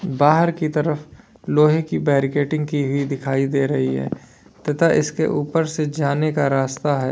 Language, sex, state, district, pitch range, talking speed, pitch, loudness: Hindi, male, Uttar Pradesh, Lalitpur, 140-155 Hz, 170 wpm, 145 Hz, -20 LUFS